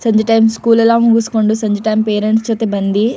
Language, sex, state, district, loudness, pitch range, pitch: Kannada, female, Karnataka, Shimoga, -13 LUFS, 215-230 Hz, 220 Hz